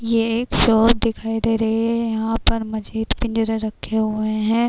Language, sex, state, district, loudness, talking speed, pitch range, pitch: Urdu, female, Bihar, Kishanganj, -20 LUFS, 180 wpm, 220-230 Hz, 225 Hz